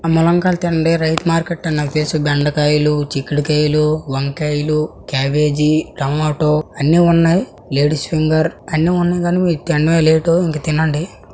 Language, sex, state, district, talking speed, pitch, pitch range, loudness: Telugu, male, Andhra Pradesh, Srikakulam, 115 wpm, 155 Hz, 150-165 Hz, -16 LUFS